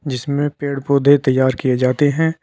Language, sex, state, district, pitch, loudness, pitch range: Hindi, male, Uttar Pradesh, Saharanpur, 140 Hz, -16 LUFS, 130-145 Hz